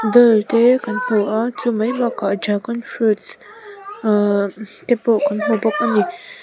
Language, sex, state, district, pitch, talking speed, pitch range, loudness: Mizo, female, Mizoram, Aizawl, 230 Hz, 170 wpm, 210-245 Hz, -18 LUFS